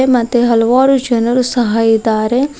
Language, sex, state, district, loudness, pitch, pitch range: Kannada, female, Karnataka, Bidar, -12 LUFS, 240 Hz, 230-255 Hz